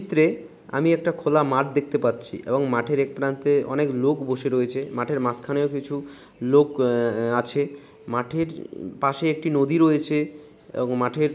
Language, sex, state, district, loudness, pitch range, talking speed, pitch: Bengali, male, West Bengal, Malda, -23 LUFS, 130-150 Hz, 160 wpm, 140 Hz